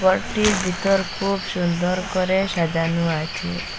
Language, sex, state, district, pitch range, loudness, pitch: Bengali, female, Assam, Hailakandi, 170-195 Hz, -22 LUFS, 185 Hz